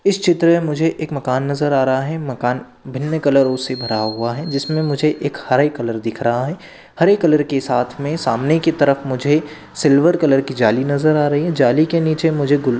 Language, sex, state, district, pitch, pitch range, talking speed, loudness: Hindi, male, Maharashtra, Dhule, 145 Hz, 130-155 Hz, 215 wpm, -17 LUFS